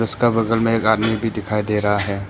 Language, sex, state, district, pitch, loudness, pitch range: Hindi, male, Arunachal Pradesh, Papum Pare, 110 Hz, -19 LUFS, 105-115 Hz